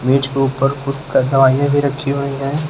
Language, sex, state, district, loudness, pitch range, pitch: Hindi, male, Uttar Pradesh, Lucknow, -16 LUFS, 135-140 Hz, 140 Hz